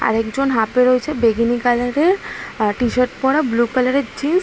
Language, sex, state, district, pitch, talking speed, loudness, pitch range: Bengali, female, West Bengal, Jalpaiguri, 250 Hz, 165 wpm, -17 LUFS, 235-275 Hz